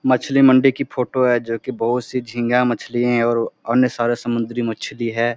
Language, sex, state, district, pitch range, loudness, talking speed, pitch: Hindi, male, Bihar, Supaul, 120-125 Hz, -19 LUFS, 200 wpm, 120 Hz